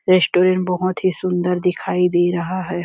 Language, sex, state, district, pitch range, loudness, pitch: Hindi, female, Chhattisgarh, Rajnandgaon, 175-185 Hz, -18 LUFS, 180 Hz